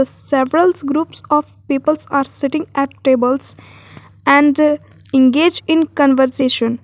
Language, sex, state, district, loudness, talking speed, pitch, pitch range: English, female, Jharkhand, Garhwa, -15 LUFS, 105 wpm, 280 Hz, 265-305 Hz